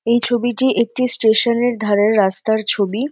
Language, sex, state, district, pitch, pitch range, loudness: Bengali, female, West Bengal, North 24 Parganas, 235 Hz, 215-240 Hz, -16 LUFS